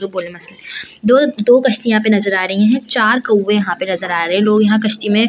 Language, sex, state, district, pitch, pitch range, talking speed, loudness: Hindi, female, Delhi, New Delhi, 210 Hz, 190-225 Hz, 240 wpm, -14 LUFS